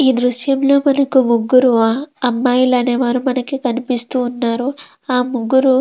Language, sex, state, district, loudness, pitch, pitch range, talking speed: Telugu, female, Andhra Pradesh, Krishna, -15 LUFS, 255 Hz, 245-265 Hz, 135 wpm